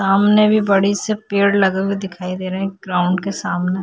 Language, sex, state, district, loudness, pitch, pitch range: Hindi, female, Uttar Pradesh, Jyotiba Phule Nagar, -17 LUFS, 195 Hz, 185-200 Hz